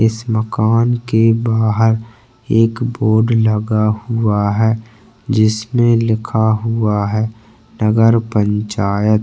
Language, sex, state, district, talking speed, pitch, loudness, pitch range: Hindi, male, Chhattisgarh, Bastar, 95 wpm, 110 Hz, -15 LUFS, 110-115 Hz